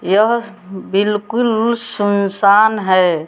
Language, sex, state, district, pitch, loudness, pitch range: Hindi, female, Bihar, West Champaran, 205 Hz, -15 LUFS, 190-220 Hz